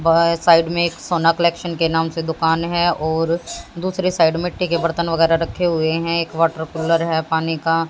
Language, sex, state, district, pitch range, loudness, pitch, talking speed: Hindi, female, Haryana, Jhajjar, 165-170 Hz, -18 LUFS, 165 Hz, 205 wpm